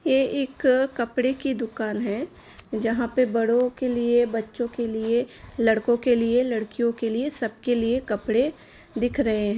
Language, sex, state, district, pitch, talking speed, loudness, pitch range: Hindi, female, Uttar Pradesh, Jalaun, 240 Hz, 170 wpm, -24 LUFS, 225-255 Hz